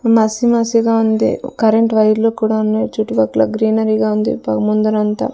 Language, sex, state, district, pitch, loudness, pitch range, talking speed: Telugu, female, Andhra Pradesh, Sri Satya Sai, 220 Hz, -15 LUFS, 215-225 Hz, 135 wpm